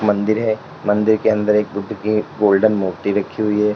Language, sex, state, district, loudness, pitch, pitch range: Hindi, male, Uttar Pradesh, Lalitpur, -18 LUFS, 105 Hz, 100-110 Hz